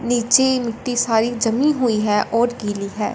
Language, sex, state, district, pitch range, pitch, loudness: Hindi, female, Punjab, Fazilka, 215-245 Hz, 235 Hz, -18 LUFS